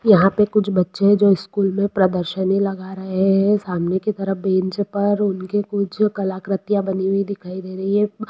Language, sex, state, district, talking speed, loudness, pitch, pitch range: Hindi, female, Jharkhand, Jamtara, 190 wpm, -19 LUFS, 195 Hz, 190-205 Hz